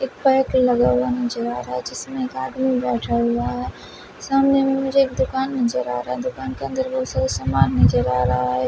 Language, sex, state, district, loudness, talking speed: Hindi, female, Bihar, West Champaran, -20 LUFS, 230 wpm